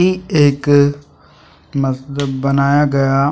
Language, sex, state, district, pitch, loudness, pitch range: Hindi, male, Chhattisgarh, Sukma, 140 Hz, -15 LUFS, 140-145 Hz